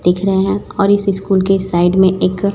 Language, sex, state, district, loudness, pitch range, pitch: Hindi, female, Chhattisgarh, Raipur, -14 LUFS, 185-200 Hz, 190 Hz